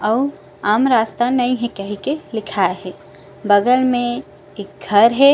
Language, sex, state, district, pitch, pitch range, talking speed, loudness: Chhattisgarhi, female, Chhattisgarh, Raigarh, 230 Hz, 205-250 Hz, 145 wpm, -17 LUFS